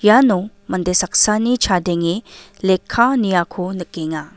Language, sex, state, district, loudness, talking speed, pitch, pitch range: Garo, female, Meghalaya, West Garo Hills, -17 LUFS, 95 wpm, 185 Hz, 180-215 Hz